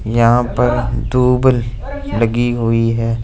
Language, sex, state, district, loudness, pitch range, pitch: Hindi, male, Punjab, Fazilka, -15 LUFS, 115-125 Hz, 120 Hz